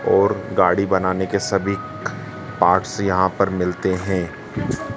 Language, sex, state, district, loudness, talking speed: Hindi, female, Madhya Pradesh, Dhar, -20 LUFS, 120 wpm